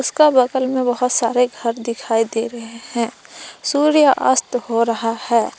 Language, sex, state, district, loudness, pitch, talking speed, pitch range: Hindi, female, Jharkhand, Palamu, -18 LUFS, 245 Hz, 160 wpm, 230-260 Hz